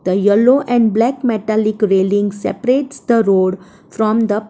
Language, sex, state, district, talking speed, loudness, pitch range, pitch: English, female, Gujarat, Valsad, 160 wpm, -15 LUFS, 200-240 Hz, 215 Hz